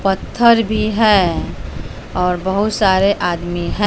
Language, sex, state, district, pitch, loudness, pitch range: Hindi, female, Bihar, West Champaran, 190 Hz, -16 LUFS, 175-215 Hz